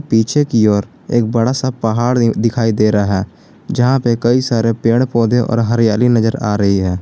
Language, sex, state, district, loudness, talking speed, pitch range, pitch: Hindi, male, Jharkhand, Garhwa, -14 LUFS, 195 wpm, 110-120 Hz, 115 Hz